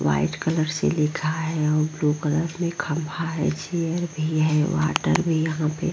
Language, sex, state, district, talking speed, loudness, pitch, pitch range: Hindi, female, Bihar, Vaishali, 180 wpm, -24 LUFS, 155 Hz, 155-160 Hz